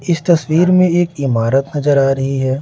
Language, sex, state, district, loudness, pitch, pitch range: Hindi, male, Bihar, Patna, -14 LUFS, 145 Hz, 135-170 Hz